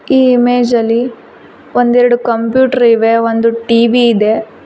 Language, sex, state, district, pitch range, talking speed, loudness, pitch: Kannada, female, Karnataka, Koppal, 230-245 Hz, 115 wpm, -11 LUFS, 235 Hz